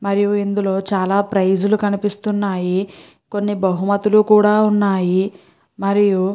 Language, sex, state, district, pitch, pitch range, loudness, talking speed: Telugu, female, Andhra Pradesh, Guntur, 200 Hz, 190-205 Hz, -17 LUFS, 115 wpm